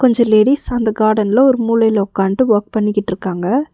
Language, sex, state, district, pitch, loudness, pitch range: Tamil, female, Tamil Nadu, Nilgiris, 220 Hz, -14 LUFS, 205-245 Hz